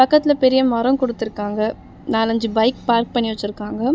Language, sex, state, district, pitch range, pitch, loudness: Tamil, female, Tamil Nadu, Chennai, 220-260 Hz, 235 Hz, -19 LUFS